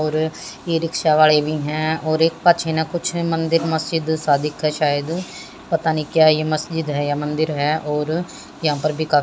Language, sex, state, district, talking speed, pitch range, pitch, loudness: Hindi, female, Haryana, Jhajjar, 190 wpm, 150-165 Hz, 155 Hz, -19 LUFS